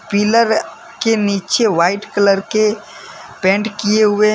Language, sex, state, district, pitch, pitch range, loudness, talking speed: Hindi, male, Jharkhand, Deoghar, 210 Hz, 200-220 Hz, -15 LUFS, 140 wpm